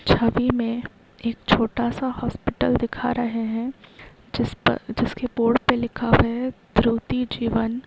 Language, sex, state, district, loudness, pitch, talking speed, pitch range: Hindi, female, Bihar, Begusarai, -23 LUFS, 235 Hz, 120 wpm, 230-250 Hz